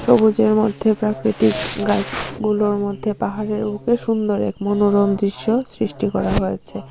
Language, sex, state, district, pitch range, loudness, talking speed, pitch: Bengali, female, Tripura, Unakoti, 205-220 Hz, -19 LUFS, 120 wpm, 215 Hz